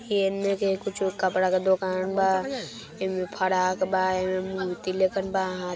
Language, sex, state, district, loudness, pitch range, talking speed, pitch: Maithili, male, Bihar, Vaishali, -26 LUFS, 185-195 Hz, 135 wpm, 190 Hz